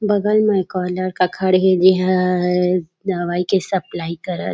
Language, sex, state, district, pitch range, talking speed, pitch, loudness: Chhattisgarhi, female, Chhattisgarh, Raigarh, 180-190 Hz, 145 wpm, 185 Hz, -18 LUFS